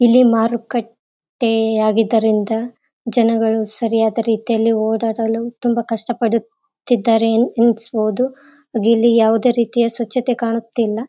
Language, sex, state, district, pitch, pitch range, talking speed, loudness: Kannada, female, Karnataka, Raichur, 230 Hz, 225-240 Hz, 80 wpm, -17 LUFS